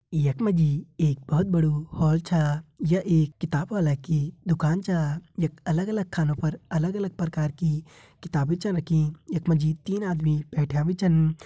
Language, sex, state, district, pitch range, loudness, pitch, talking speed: Hindi, male, Uttarakhand, Tehri Garhwal, 155-175 Hz, -25 LUFS, 160 Hz, 175 wpm